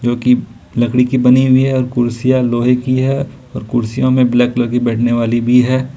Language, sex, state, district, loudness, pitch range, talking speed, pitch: Hindi, male, Jharkhand, Ranchi, -14 LUFS, 120-130 Hz, 220 wpm, 125 Hz